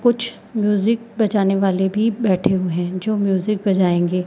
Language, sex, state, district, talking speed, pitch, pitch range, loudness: Hindi, female, Madhya Pradesh, Katni, 155 wpm, 200 Hz, 185-220 Hz, -19 LUFS